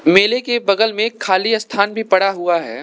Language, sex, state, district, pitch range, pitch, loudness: Hindi, male, Arunachal Pradesh, Lower Dibang Valley, 190-225 Hz, 200 Hz, -16 LUFS